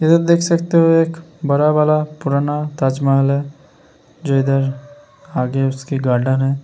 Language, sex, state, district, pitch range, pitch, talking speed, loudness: Hindi, male, Uttar Pradesh, Hamirpur, 135-160 Hz, 145 Hz, 145 wpm, -17 LUFS